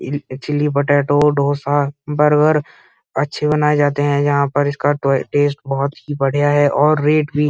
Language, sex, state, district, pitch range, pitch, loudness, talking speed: Hindi, male, Uttar Pradesh, Muzaffarnagar, 140-150 Hz, 145 Hz, -16 LUFS, 160 wpm